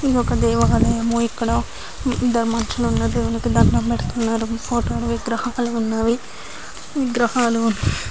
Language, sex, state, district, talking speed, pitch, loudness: Telugu, female, Andhra Pradesh, Srikakulam, 105 wpm, 230 Hz, -20 LUFS